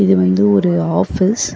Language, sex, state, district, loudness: Tamil, female, Tamil Nadu, Chennai, -14 LUFS